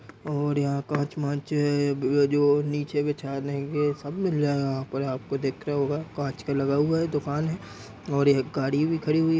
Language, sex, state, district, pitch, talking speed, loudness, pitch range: Hindi, male, Uttar Pradesh, Ghazipur, 145 Hz, 185 wpm, -26 LUFS, 140-150 Hz